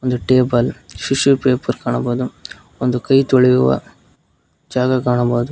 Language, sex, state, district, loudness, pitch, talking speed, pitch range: Kannada, male, Karnataka, Koppal, -16 LUFS, 125 Hz, 100 wpm, 120-130 Hz